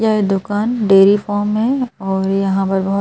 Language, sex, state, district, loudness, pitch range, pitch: Hindi, male, Madhya Pradesh, Bhopal, -15 LUFS, 195-215 Hz, 200 Hz